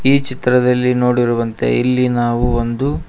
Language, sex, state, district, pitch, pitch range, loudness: Kannada, male, Karnataka, Koppal, 125 Hz, 120-125 Hz, -16 LUFS